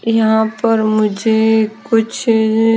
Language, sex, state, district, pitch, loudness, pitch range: Hindi, female, Himachal Pradesh, Shimla, 220 Hz, -14 LUFS, 220-225 Hz